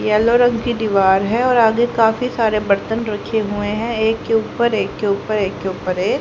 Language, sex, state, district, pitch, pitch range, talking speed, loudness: Hindi, female, Haryana, Charkhi Dadri, 220 Hz, 205-235 Hz, 220 wpm, -17 LUFS